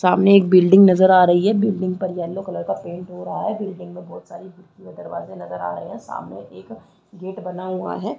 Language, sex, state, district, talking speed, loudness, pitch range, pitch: Hindi, female, Chhattisgarh, Rajnandgaon, 240 wpm, -17 LUFS, 175-190 Hz, 185 Hz